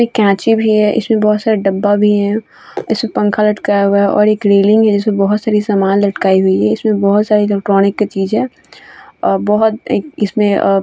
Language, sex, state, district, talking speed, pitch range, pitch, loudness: Hindi, female, Bihar, Vaishali, 240 wpm, 200-215 Hz, 210 Hz, -13 LUFS